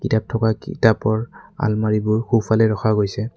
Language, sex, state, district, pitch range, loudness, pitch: Assamese, male, Assam, Kamrup Metropolitan, 110-115 Hz, -19 LUFS, 110 Hz